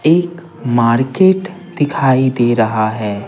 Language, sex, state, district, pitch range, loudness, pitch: Hindi, male, Bihar, Patna, 115-170 Hz, -14 LUFS, 130 Hz